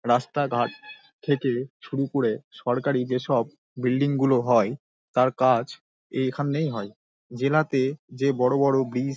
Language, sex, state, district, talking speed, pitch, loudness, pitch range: Bengali, male, West Bengal, Dakshin Dinajpur, 145 wpm, 130 Hz, -25 LUFS, 125-140 Hz